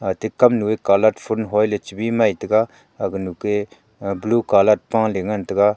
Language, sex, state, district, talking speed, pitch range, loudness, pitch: Wancho, male, Arunachal Pradesh, Longding, 155 wpm, 100-110 Hz, -19 LUFS, 105 Hz